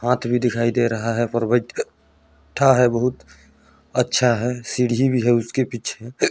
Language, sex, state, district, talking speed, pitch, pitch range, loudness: Chhattisgarhi, male, Chhattisgarh, Balrampur, 170 wpm, 120 Hz, 115-125 Hz, -20 LUFS